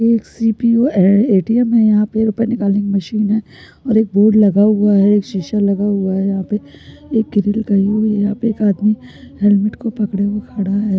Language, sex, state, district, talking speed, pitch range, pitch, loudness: Hindi, female, Bihar, Lakhisarai, 170 wpm, 200-220 Hz, 210 Hz, -15 LUFS